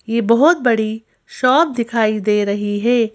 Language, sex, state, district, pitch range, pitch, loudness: Hindi, female, Madhya Pradesh, Bhopal, 215-245 Hz, 230 Hz, -16 LUFS